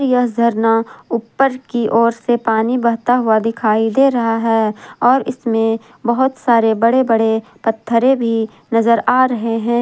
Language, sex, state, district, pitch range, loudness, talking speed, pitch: Hindi, female, Jharkhand, Ranchi, 225-245 Hz, -15 LUFS, 155 wpm, 230 Hz